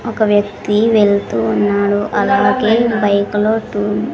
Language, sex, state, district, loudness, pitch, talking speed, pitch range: Telugu, female, Andhra Pradesh, Sri Satya Sai, -14 LUFS, 205 Hz, 115 wpm, 200-215 Hz